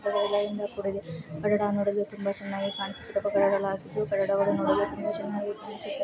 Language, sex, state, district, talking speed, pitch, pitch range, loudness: Kannada, female, Karnataka, Chamarajanagar, 70 wpm, 200 Hz, 195-205 Hz, -29 LUFS